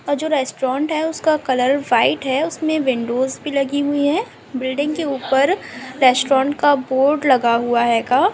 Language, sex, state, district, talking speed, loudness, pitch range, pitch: Hindi, female, Andhra Pradesh, Anantapur, 170 wpm, -18 LUFS, 260-295 Hz, 275 Hz